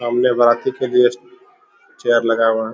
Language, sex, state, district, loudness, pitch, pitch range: Hindi, male, Bihar, Begusarai, -16 LUFS, 120 Hz, 115-125 Hz